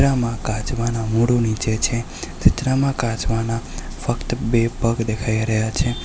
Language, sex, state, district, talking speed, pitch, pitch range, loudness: Gujarati, male, Gujarat, Valsad, 130 wpm, 115 Hz, 110-120 Hz, -21 LUFS